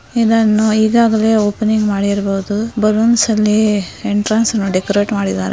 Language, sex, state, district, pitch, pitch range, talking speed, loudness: Kannada, female, Karnataka, Mysore, 215 Hz, 205-220 Hz, 110 wpm, -14 LUFS